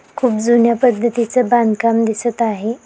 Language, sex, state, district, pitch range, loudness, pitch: Marathi, female, Maharashtra, Aurangabad, 225-240 Hz, -15 LUFS, 235 Hz